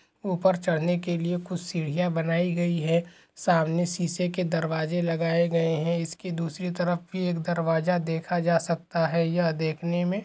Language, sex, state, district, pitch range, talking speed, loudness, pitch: Hindi, male, Goa, North and South Goa, 165-175 Hz, 170 wpm, -26 LUFS, 170 Hz